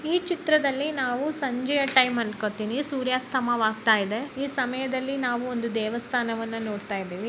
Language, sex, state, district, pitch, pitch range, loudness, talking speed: Kannada, male, Karnataka, Bellary, 250 Hz, 225-275 Hz, -25 LUFS, 105 wpm